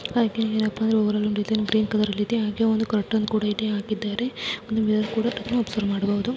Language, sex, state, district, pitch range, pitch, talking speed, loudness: Kannada, female, Karnataka, Chamarajanagar, 210-225 Hz, 215 Hz, 130 wpm, -24 LUFS